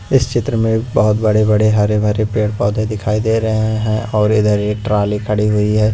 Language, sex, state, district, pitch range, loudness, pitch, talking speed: Hindi, male, Punjab, Pathankot, 105-110 Hz, -15 LUFS, 110 Hz, 180 wpm